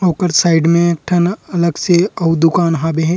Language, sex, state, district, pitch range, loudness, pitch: Chhattisgarhi, male, Chhattisgarh, Rajnandgaon, 165-175 Hz, -14 LUFS, 170 Hz